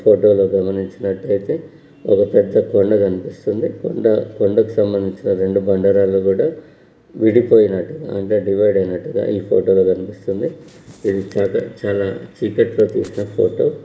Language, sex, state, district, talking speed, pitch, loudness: Telugu, male, Karnataka, Bellary, 120 wpm, 100 Hz, -17 LUFS